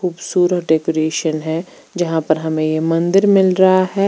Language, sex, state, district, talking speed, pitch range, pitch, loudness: Hindi, female, Chandigarh, Chandigarh, 160 wpm, 160-185 Hz, 170 Hz, -16 LUFS